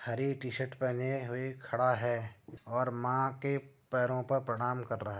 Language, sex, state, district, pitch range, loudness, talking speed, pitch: Hindi, male, Uttar Pradesh, Jyotiba Phule Nagar, 120-135 Hz, -34 LUFS, 175 wpm, 125 Hz